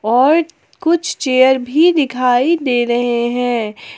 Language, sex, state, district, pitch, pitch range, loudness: Hindi, female, Jharkhand, Palamu, 255 Hz, 240-310 Hz, -14 LUFS